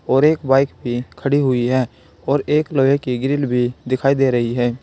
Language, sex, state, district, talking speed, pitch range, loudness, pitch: Hindi, male, Uttar Pradesh, Saharanpur, 210 wpm, 125-140 Hz, -18 LUFS, 130 Hz